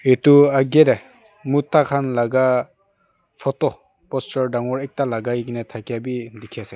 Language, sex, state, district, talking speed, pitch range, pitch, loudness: Nagamese, male, Nagaland, Dimapur, 140 wpm, 120-145 Hz, 130 Hz, -19 LUFS